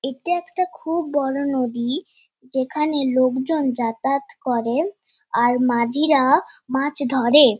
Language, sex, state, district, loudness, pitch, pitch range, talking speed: Bengali, female, West Bengal, Kolkata, -20 LUFS, 270 Hz, 255-305 Hz, 105 wpm